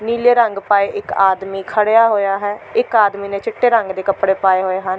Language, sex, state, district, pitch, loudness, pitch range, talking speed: Punjabi, female, Delhi, New Delhi, 200 Hz, -16 LUFS, 195-225 Hz, 215 wpm